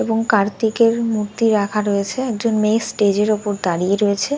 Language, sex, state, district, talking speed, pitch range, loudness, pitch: Bengali, female, West Bengal, Dakshin Dinajpur, 165 wpm, 205-225 Hz, -18 LUFS, 215 Hz